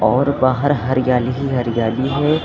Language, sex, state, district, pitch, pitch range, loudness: Hindi, female, Uttar Pradesh, Lucknow, 130 Hz, 125-140 Hz, -17 LUFS